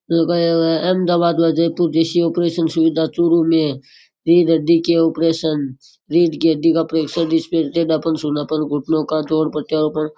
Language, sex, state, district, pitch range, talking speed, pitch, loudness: Rajasthani, male, Rajasthan, Churu, 155-170 Hz, 165 wpm, 165 Hz, -17 LUFS